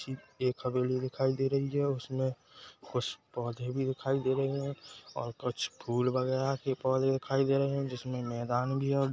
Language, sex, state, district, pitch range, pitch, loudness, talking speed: Hindi, male, Chhattisgarh, Kabirdham, 125-135 Hz, 130 Hz, -32 LUFS, 205 wpm